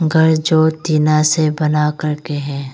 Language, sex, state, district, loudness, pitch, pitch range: Hindi, female, Arunachal Pradesh, Longding, -15 LUFS, 155 Hz, 150-160 Hz